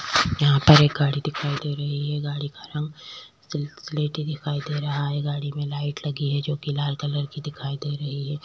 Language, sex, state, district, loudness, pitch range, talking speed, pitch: Hindi, female, Chhattisgarh, Korba, -24 LUFS, 145-150 Hz, 215 wpm, 145 Hz